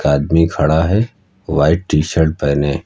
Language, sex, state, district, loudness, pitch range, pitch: Hindi, male, Uttar Pradesh, Lucknow, -15 LUFS, 75-90 Hz, 80 Hz